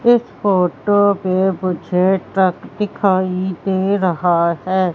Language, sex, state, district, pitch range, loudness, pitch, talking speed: Hindi, female, Madhya Pradesh, Katni, 180-195 Hz, -17 LUFS, 190 Hz, 110 wpm